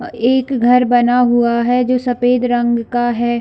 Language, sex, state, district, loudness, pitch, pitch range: Hindi, female, Chhattisgarh, Bilaspur, -14 LUFS, 245 Hz, 240-250 Hz